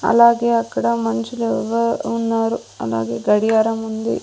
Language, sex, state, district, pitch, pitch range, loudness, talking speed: Telugu, female, Andhra Pradesh, Sri Satya Sai, 230 Hz, 220-230 Hz, -19 LUFS, 115 wpm